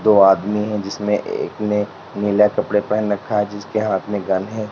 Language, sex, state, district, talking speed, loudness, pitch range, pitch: Hindi, male, Uttar Pradesh, Lalitpur, 205 wpm, -19 LUFS, 100-105 Hz, 105 Hz